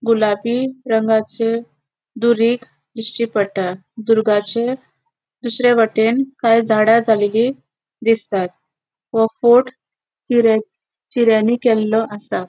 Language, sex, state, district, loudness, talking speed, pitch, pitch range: Konkani, female, Goa, North and South Goa, -17 LUFS, 80 wpm, 225 Hz, 215-235 Hz